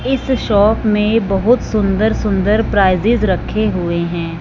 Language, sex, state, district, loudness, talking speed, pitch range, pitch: Hindi, male, Punjab, Fazilka, -15 LUFS, 135 wpm, 190-220 Hz, 210 Hz